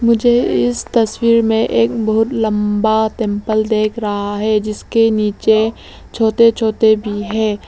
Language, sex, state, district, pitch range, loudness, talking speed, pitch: Hindi, female, Arunachal Pradesh, Lower Dibang Valley, 215-225 Hz, -15 LUFS, 135 wpm, 220 Hz